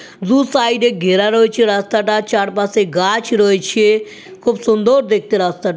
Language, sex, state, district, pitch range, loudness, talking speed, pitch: Bengali, female, West Bengal, North 24 Parganas, 200-230 Hz, -14 LUFS, 135 wpm, 215 Hz